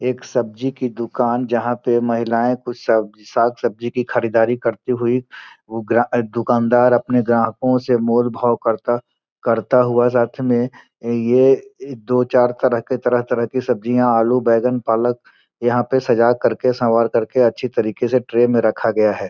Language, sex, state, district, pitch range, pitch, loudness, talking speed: Hindi, male, Bihar, Gopalganj, 115-125 Hz, 120 Hz, -18 LUFS, 160 wpm